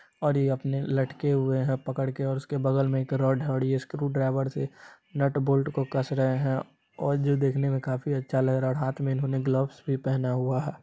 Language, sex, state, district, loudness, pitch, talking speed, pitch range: Hindi, male, Bihar, Supaul, -27 LUFS, 135 Hz, 235 wpm, 130-140 Hz